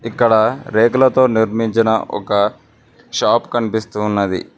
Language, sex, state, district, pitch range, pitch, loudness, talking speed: Telugu, male, Telangana, Mahabubabad, 110-120 Hz, 115 Hz, -16 LUFS, 90 wpm